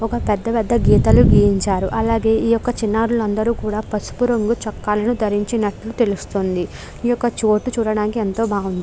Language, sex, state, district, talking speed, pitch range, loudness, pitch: Telugu, female, Andhra Pradesh, Krishna, 145 wpm, 210-230 Hz, -18 LUFS, 220 Hz